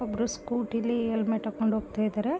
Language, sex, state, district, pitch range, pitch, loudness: Kannada, female, Karnataka, Mysore, 220-235 Hz, 225 Hz, -29 LUFS